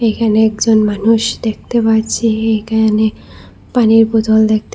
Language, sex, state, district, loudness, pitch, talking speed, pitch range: Bengali, female, Assam, Hailakandi, -13 LUFS, 220 Hz, 115 wpm, 220-225 Hz